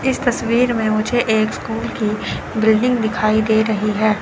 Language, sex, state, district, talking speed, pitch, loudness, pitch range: Hindi, female, Chandigarh, Chandigarh, 170 wpm, 220 Hz, -18 LUFS, 215-240 Hz